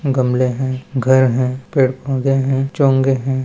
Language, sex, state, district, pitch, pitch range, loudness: Hindi, male, Rajasthan, Nagaur, 130 Hz, 130-135 Hz, -16 LUFS